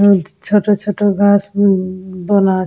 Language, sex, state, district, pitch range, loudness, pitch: Bengali, female, West Bengal, Dakshin Dinajpur, 190-205 Hz, -14 LUFS, 200 Hz